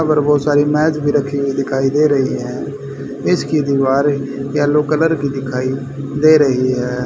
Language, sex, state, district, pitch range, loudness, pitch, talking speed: Hindi, male, Haryana, Rohtak, 135-150 Hz, -16 LUFS, 140 Hz, 155 wpm